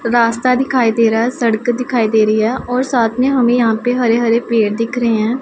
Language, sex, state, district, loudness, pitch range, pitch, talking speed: Hindi, female, Punjab, Pathankot, -14 LUFS, 225-245 Hz, 235 Hz, 245 wpm